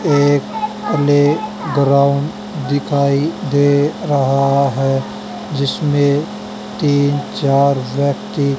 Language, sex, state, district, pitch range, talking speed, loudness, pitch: Hindi, male, Haryana, Charkhi Dadri, 140-145 Hz, 75 wpm, -16 LUFS, 145 Hz